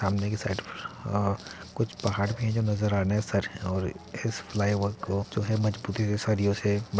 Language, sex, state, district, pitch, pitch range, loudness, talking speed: Hindi, male, Uttar Pradesh, Muzaffarnagar, 100 Hz, 100-110 Hz, -29 LUFS, 190 wpm